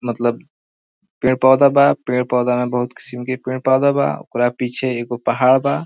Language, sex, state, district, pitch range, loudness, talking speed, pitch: Bhojpuri, male, Bihar, East Champaran, 125-135 Hz, -17 LUFS, 185 wpm, 130 Hz